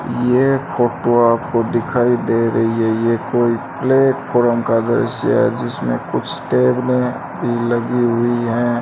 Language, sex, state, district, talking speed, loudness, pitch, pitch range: Hindi, male, Rajasthan, Bikaner, 145 wpm, -17 LUFS, 120 Hz, 115-120 Hz